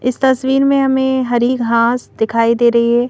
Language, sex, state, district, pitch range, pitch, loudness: Hindi, female, Madhya Pradesh, Bhopal, 235-265 Hz, 245 Hz, -14 LUFS